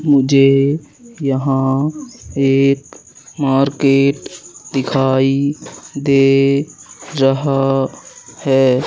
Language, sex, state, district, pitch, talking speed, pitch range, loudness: Hindi, male, Madhya Pradesh, Katni, 135 Hz, 55 wpm, 135-140 Hz, -15 LUFS